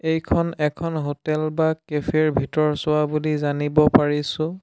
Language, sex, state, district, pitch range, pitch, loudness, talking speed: Assamese, male, Assam, Sonitpur, 150-160 Hz, 155 Hz, -21 LUFS, 130 wpm